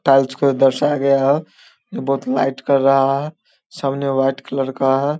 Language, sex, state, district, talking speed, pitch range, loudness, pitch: Hindi, male, Bihar, Samastipur, 185 wpm, 135-140 Hz, -18 LUFS, 135 Hz